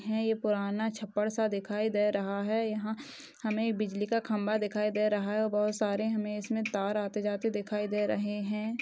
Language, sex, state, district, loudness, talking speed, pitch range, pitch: Hindi, female, Maharashtra, Nagpur, -32 LUFS, 215 wpm, 210-220 Hz, 210 Hz